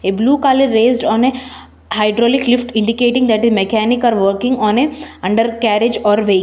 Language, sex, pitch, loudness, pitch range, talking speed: English, female, 230 Hz, -14 LUFS, 215-250 Hz, 195 wpm